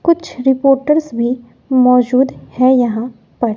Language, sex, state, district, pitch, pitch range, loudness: Hindi, female, Bihar, West Champaran, 255 Hz, 245-270 Hz, -14 LUFS